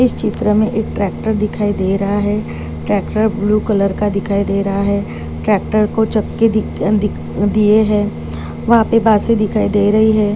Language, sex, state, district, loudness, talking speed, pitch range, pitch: Hindi, female, Maharashtra, Dhule, -16 LUFS, 180 wpm, 200-215 Hz, 210 Hz